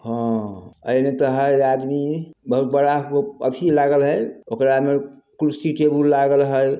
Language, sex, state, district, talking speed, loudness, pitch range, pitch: Hindi, male, Bihar, Samastipur, 130 wpm, -19 LUFS, 135-145 Hz, 140 Hz